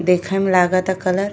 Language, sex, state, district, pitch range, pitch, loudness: Bhojpuri, female, Uttar Pradesh, Deoria, 180-190 Hz, 185 Hz, -17 LUFS